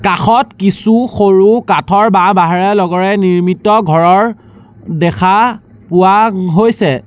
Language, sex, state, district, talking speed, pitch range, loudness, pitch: Assamese, male, Assam, Sonitpur, 100 wpm, 180-210 Hz, -10 LUFS, 195 Hz